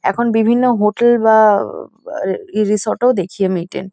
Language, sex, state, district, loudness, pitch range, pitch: Bengali, female, West Bengal, Kolkata, -15 LUFS, 195-235 Hz, 215 Hz